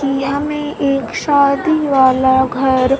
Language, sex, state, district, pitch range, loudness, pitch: Hindi, female, Bihar, Kaimur, 260-285 Hz, -14 LUFS, 275 Hz